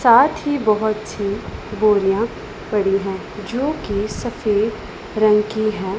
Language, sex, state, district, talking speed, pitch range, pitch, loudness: Hindi, female, Punjab, Pathankot, 120 wpm, 205-220 Hz, 215 Hz, -19 LUFS